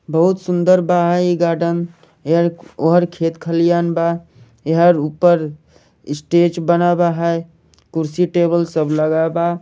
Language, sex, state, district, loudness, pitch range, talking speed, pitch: Bhojpuri, male, Jharkhand, Sahebganj, -16 LUFS, 160-175 Hz, 130 wpm, 170 Hz